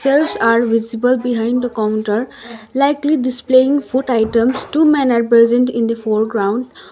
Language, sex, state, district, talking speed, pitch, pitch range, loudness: English, female, Sikkim, Gangtok, 145 wpm, 240 Hz, 230-260 Hz, -15 LUFS